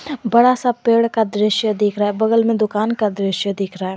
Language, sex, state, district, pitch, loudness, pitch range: Hindi, female, Jharkhand, Garhwa, 215 Hz, -17 LUFS, 205-230 Hz